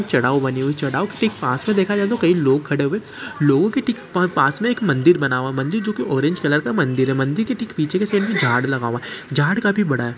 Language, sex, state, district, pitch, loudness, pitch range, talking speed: Hindi, male, West Bengal, Purulia, 150 Hz, -19 LUFS, 135-205 Hz, 260 wpm